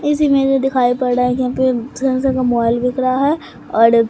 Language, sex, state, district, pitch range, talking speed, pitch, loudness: Hindi, female, Bihar, Katihar, 245-270 Hz, 250 wpm, 255 Hz, -16 LUFS